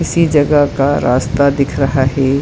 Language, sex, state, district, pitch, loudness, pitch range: Hindi, female, Uttar Pradesh, Etah, 140 Hz, -13 LUFS, 135-145 Hz